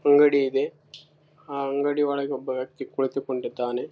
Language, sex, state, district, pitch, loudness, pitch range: Kannada, male, Karnataka, Raichur, 140 Hz, -25 LUFS, 135-145 Hz